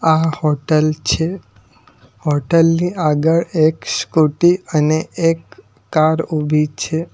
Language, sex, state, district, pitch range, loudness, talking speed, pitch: Gujarati, male, Gujarat, Valsad, 150-165 Hz, -16 LUFS, 110 wpm, 160 Hz